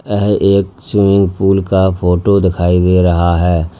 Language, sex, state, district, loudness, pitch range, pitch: Hindi, male, Uttar Pradesh, Lalitpur, -12 LUFS, 90-100 Hz, 95 Hz